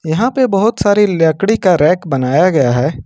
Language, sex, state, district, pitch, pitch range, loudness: Hindi, male, Jharkhand, Ranchi, 180 Hz, 155-205 Hz, -13 LUFS